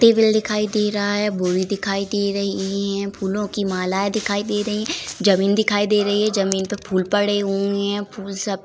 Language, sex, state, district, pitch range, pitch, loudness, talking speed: Hindi, female, Uttar Pradesh, Varanasi, 195-210 Hz, 200 Hz, -21 LUFS, 215 wpm